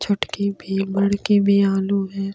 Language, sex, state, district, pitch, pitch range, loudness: Hindi, female, Delhi, New Delhi, 200 Hz, 195-200 Hz, -20 LUFS